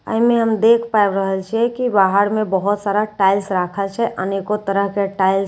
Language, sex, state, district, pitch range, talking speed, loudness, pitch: Maithili, female, Bihar, Katihar, 195-220 Hz, 230 wpm, -17 LUFS, 200 Hz